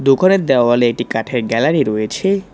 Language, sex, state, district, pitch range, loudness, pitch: Bengali, male, West Bengal, Cooch Behar, 115-160 Hz, -15 LUFS, 120 Hz